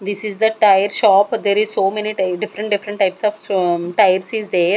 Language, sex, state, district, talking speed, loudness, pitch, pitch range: English, female, Punjab, Kapurthala, 225 wpm, -17 LUFS, 205 Hz, 190-210 Hz